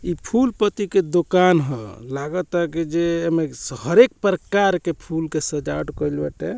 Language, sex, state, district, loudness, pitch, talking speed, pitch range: Bhojpuri, male, Bihar, Muzaffarpur, -20 LUFS, 170 Hz, 165 wpm, 150-190 Hz